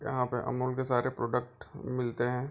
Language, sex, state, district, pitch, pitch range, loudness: Hindi, male, Bihar, Bhagalpur, 125 Hz, 125-130 Hz, -32 LUFS